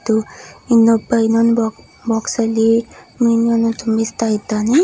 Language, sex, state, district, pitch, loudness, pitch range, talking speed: Kannada, female, Karnataka, Dakshina Kannada, 230 Hz, -16 LUFS, 225-230 Hz, 85 wpm